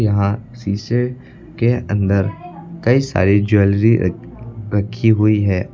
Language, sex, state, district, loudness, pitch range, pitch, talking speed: Hindi, male, Uttar Pradesh, Lucknow, -17 LUFS, 100-120 Hz, 110 Hz, 115 wpm